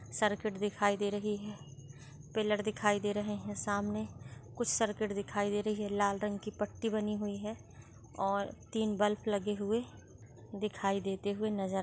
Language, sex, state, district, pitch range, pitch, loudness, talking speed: Hindi, female, Chhattisgarh, Raigarh, 200-210 Hz, 205 Hz, -35 LUFS, 160 wpm